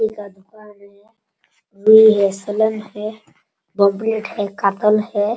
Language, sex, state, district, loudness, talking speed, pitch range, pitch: Hindi, male, Bihar, Sitamarhi, -16 LUFS, 135 wpm, 200-220 Hz, 210 Hz